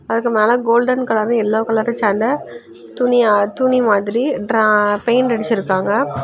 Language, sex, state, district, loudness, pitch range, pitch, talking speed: Tamil, female, Tamil Nadu, Kanyakumari, -16 LUFS, 205-240 Hz, 225 Hz, 125 wpm